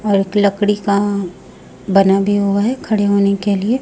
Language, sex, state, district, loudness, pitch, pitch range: Hindi, female, Chhattisgarh, Raipur, -15 LUFS, 200 Hz, 200-205 Hz